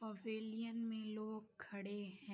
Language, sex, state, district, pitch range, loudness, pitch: Hindi, female, Uttar Pradesh, Gorakhpur, 205-220 Hz, -47 LUFS, 215 Hz